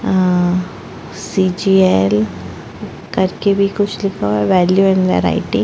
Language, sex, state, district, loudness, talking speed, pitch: Hindi, female, Chhattisgarh, Bastar, -15 LUFS, 125 wpm, 185 Hz